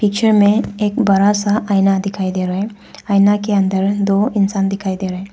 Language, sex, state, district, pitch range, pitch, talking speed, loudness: Hindi, female, Arunachal Pradesh, Papum Pare, 195-205 Hz, 200 Hz, 215 wpm, -16 LUFS